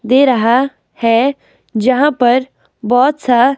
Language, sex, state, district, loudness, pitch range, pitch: Hindi, female, Himachal Pradesh, Shimla, -13 LUFS, 240-270 Hz, 255 Hz